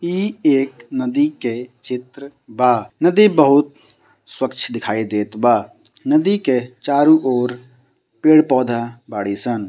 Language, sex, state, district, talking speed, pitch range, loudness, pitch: Bhojpuri, male, Bihar, Gopalganj, 110 wpm, 120-155 Hz, -17 LUFS, 130 Hz